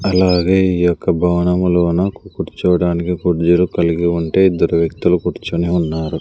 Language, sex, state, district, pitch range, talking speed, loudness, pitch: Telugu, male, Andhra Pradesh, Sri Satya Sai, 85-90 Hz, 135 wpm, -16 LUFS, 90 Hz